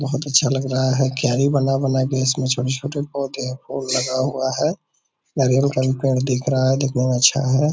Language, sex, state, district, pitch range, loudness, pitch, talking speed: Hindi, male, Bihar, Purnia, 130-140 Hz, -20 LUFS, 130 Hz, 210 wpm